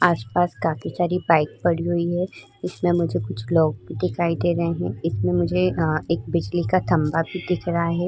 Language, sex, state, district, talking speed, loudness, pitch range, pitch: Hindi, female, Uttar Pradesh, Muzaffarnagar, 195 wpm, -23 LUFS, 115-175 Hz, 165 Hz